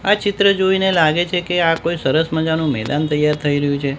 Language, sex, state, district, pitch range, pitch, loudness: Gujarati, male, Gujarat, Gandhinagar, 150-180 Hz, 160 Hz, -17 LUFS